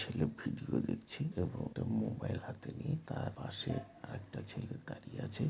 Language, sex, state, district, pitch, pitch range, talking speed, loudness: Bengali, male, West Bengal, North 24 Parganas, 130 Hz, 115-140 Hz, 165 wpm, -40 LUFS